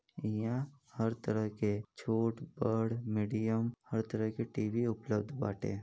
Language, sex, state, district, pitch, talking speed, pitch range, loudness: Bhojpuri, male, Uttar Pradesh, Deoria, 110 Hz, 145 wpm, 110-120 Hz, -36 LUFS